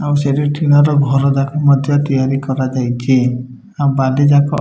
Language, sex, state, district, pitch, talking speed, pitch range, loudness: Odia, male, Odisha, Malkangiri, 140 Hz, 170 wpm, 130-145 Hz, -14 LUFS